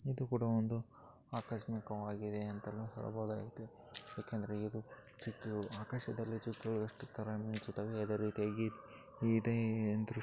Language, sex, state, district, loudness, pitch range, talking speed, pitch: Kannada, male, Karnataka, Chamarajanagar, -41 LUFS, 105-115 Hz, 100 wpm, 110 Hz